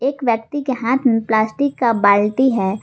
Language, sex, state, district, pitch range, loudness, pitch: Hindi, female, Jharkhand, Garhwa, 220-265 Hz, -17 LUFS, 235 Hz